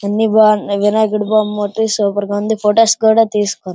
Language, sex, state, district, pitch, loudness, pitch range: Telugu, female, Andhra Pradesh, Srikakulam, 210 Hz, -14 LUFS, 205-220 Hz